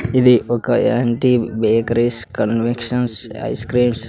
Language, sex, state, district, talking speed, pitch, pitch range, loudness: Telugu, male, Andhra Pradesh, Sri Satya Sai, 115 wpm, 120 Hz, 115-125 Hz, -17 LUFS